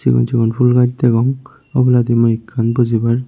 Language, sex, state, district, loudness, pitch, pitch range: Chakma, male, Tripura, Unakoti, -15 LUFS, 120 Hz, 115-125 Hz